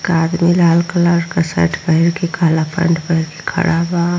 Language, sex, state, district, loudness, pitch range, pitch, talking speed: Hindi, female, Bihar, Vaishali, -15 LUFS, 165-175 Hz, 170 Hz, 185 wpm